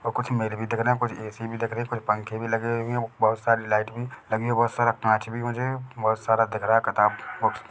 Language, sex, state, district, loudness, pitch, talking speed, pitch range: Hindi, male, Chhattisgarh, Bilaspur, -25 LUFS, 115 Hz, 295 wpm, 110-120 Hz